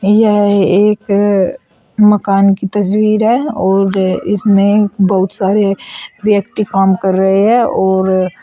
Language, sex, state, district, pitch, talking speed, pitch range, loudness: Hindi, female, Uttar Pradesh, Shamli, 200 Hz, 120 wpm, 190-210 Hz, -12 LUFS